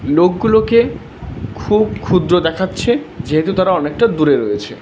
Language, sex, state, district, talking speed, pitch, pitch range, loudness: Bengali, male, West Bengal, Alipurduar, 110 wpm, 180 Hz, 155-220 Hz, -15 LUFS